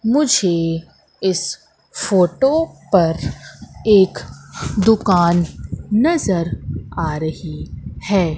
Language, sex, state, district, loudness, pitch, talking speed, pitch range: Hindi, female, Madhya Pradesh, Katni, -18 LUFS, 180 Hz, 70 wpm, 165-210 Hz